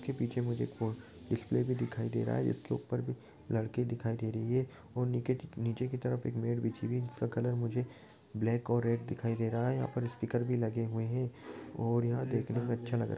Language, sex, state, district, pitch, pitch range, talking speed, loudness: Maithili, male, Bihar, Supaul, 120 Hz, 115-125 Hz, 245 wpm, -35 LUFS